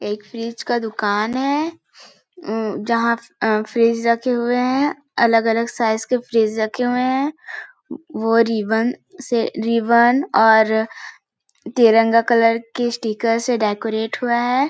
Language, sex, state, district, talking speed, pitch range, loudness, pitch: Hindi, female, Chhattisgarh, Balrampur, 140 wpm, 225-250 Hz, -18 LUFS, 235 Hz